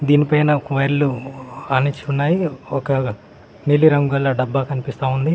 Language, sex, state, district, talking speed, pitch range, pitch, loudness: Telugu, male, Telangana, Mahabubabad, 135 wpm, 135-145 Hz, 140 Hz, -18 LUFS